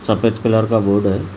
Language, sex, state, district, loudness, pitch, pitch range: Hindi, male, Maharashtra, Gondia, -16 LUFS, 110 Hz, 100-115 Hz